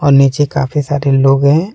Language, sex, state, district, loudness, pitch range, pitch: Hindi, male, Jharkhand, Deoghar, -12 LUFS, 135-145 Hz, 140 Hz